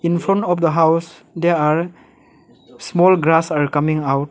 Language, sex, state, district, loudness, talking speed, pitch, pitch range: English, male, Arunachal Pradesh, Lower Dibang Valley, -17 LUFS, 165 wpm, 165 Hz, 150-175 Hz